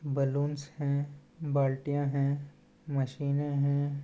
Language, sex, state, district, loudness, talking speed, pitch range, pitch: Chhattisgarhi, male, Chhattisgarh, Balrampur, -32 LUFS, 90 wpm, 140-145 Hz, 140 Hz